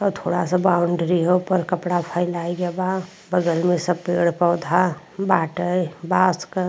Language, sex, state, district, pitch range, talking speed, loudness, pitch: Bhojpuri, female, Uttar Pradesh, Ghazipur, 175-185 Hz, 150 wpm, -21 LUFS, 180 Hz